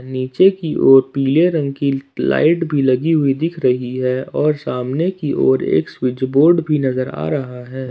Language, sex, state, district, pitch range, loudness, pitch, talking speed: Hindi, male, Jharkhand, Ranchi, 130-155 Hz, -16 LUFS, 135 Hz, 190 wpm